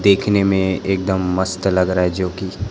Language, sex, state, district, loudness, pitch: Hindi, male, Chhattisgarh, Raipur, -18 LUFS, 95 Hz